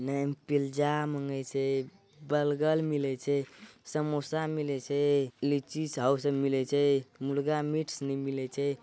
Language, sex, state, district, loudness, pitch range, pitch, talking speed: Angika, male, Bihar, Bhagalpur, -31 LUFS, 135-150 Hz, 140 Hz, 130 wpm